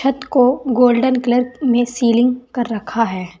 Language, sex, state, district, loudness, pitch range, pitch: Hindi, female, Uttar Pradesh, Saharanpur, -16 LUFS, 235-255 Hz, 245 Hz